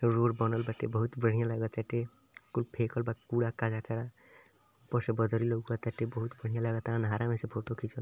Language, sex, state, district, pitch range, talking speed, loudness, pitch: Bhojpuri, male, Uttar Pradesh, Ghazipur, 115-120 Hz, 200 wpm, -33 LUFS, 115 Hz